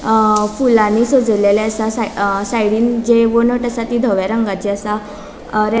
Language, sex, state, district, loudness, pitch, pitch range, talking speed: Konkani, female, Goa, North and South Goa, -15 LUFS, 220 Hz, 210-235 Hz, 165 wpm